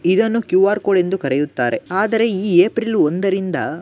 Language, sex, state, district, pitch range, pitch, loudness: Kannada, male, Karnataka, Gulbarga, 175-210 Hz, 190 Hz, -17 LUFS